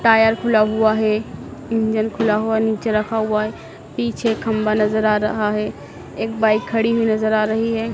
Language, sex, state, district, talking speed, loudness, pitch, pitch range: Hindi, female, Madhya Pradesh, Dhar, 190 wpm, -19 LUFS, 220 Hz, 215-225 Hz